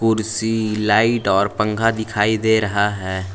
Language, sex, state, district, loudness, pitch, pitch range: Hindi, male, Jharkhand, Palamu, -18 LUFS, 110 Hz, 105-110 Hz